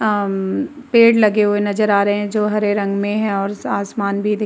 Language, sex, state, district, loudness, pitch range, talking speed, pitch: Hindi, female, Uttar Pradesh, Muzaffarnagar, -17 LUFS, 200-215 Hz, 240 wpm, 205 Hz